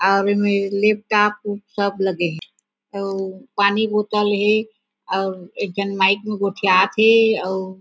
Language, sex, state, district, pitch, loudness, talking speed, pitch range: Chhattisgarhi, female, Chhattisgarh, Raigarh, 200 Hz, -19 LUFS, 145 wpm, 195-210 Hz